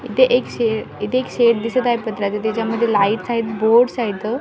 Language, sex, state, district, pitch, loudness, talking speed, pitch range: Marathi, female, Maharashtra, Washim, 230 Hz, -18 LUFS, 205 wpm, 220-240 Hz